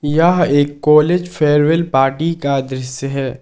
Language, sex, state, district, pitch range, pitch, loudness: Hindi, male, Jharkhand, Garhwa, 135-160 Hz, 145 Hz, -15 LUFS